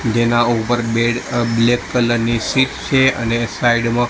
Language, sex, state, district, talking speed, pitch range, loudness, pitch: Gujarati, male, Gujarat, Gandhinagar, 175 wpm, 115-120 Hz, -16 LUFS, 120 Hz